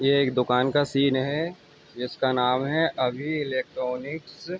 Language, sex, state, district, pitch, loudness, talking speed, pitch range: Hindi, male, Uttar Pradesh, Ghazipur, 135 Hz, -25 LUFS, 155 wpm, 130-145 Hz